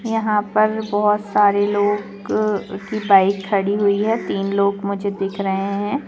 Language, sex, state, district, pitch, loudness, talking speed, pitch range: Hindi, female, Jharkhand, Jamtara, 205 Hz, -19 LUFS, 160 wpm, 200-210 Hz